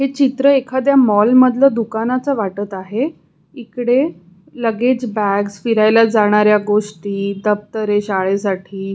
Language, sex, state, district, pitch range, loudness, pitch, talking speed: Marathi, female, Maharashtra, Pune, 205-255 Hz, -16 LUFS, 220 Hz, 105 wpm